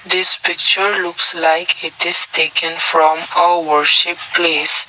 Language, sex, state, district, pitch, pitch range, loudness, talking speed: English, male, Assam, Kamrup Metropolitan, 170 Hz, 160-175 Hz, -13 LUFS, 145 wpm